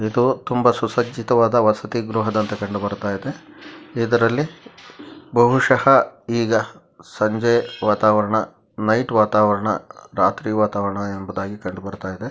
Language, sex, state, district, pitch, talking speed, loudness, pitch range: Kannada, male, Karnataka, Gulbarga, 110 Hz, 90 wpm, -20 LUFS, 105-120 Hz